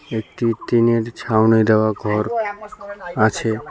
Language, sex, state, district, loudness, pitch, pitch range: Bengali, male, West Bengal, Cooch Behar, -19 LUFS, 115 Hz, 110-145 Hz